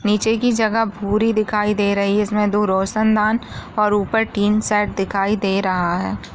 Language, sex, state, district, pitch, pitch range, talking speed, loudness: Hindi, female, Maharashtra, Nagpur, 210 Hz, 200-215 Hz, 180 wpm, -18 LUFS